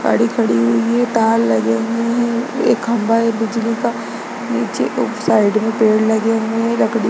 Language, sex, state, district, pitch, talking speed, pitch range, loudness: Hindi, female, Bihar, Gaya, 225 Hz, 195 wpm, 215-230 Hz, -16 LUFS